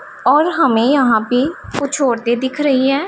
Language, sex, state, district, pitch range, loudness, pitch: Hindi, female, Punjab, Pathankot, 245-285 Hz, -15 LUFS, 265 Hz